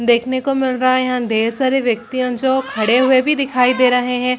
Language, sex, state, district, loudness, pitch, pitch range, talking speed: Hindi, female, Chhattisgarh, Bilaspur, -16 LUFS, 255 Hz, 245-260 Hz, 220 wpm